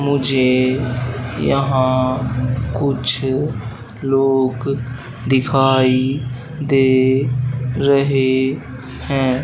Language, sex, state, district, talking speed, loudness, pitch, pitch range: Hindi, male, Madhya Pradesh, Dhar, 50 wpm, -17 LUFS, 130 Hz, 125-135 Hz